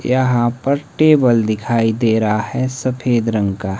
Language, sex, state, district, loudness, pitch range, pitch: Hindi, male, Himachal Pradesh, Shimla, -16 LUFS, 110-130 Hz, 120 Hz